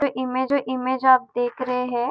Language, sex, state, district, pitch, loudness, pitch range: Hindi, female, Maharashtra, Nagpur, 255 Hz, -22 LUFS, 250-260 Hz